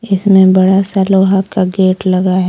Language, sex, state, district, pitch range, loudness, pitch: Hindi, female, Jharkhand, Deoghar, 185-195 Hz, -11 LUFS, 190 Hz